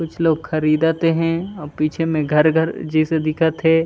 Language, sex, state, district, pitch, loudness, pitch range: Chhattisgarhi, male, Chhattisgarh, Raigarh, 160 Hz, -18 LUFS, 155-165 Hz